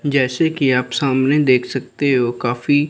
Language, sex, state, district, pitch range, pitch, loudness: Hindi, female, Chandigarh, Chandigarh, 125-145 Hz, 135 Hz, -17 LUFS